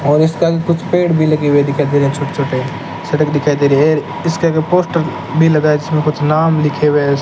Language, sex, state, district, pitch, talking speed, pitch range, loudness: Hindi, male, Rajasthan, Bikaner, 150 Hz, 250 wpm, 145-160 Hz, -14 LUFS